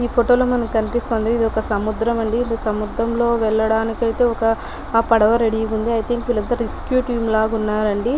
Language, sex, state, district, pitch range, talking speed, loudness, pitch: Telugu, female, Telangana, Nalgonda, 220-235 Hz, 185 wpm, -19 LUFS, 230 Hz